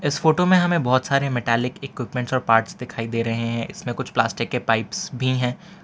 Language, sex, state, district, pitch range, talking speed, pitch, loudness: Hindi, male, Gujarat, Valsad, 115-140 Hz, 215 wpm, 125 Hz, -22 LUFS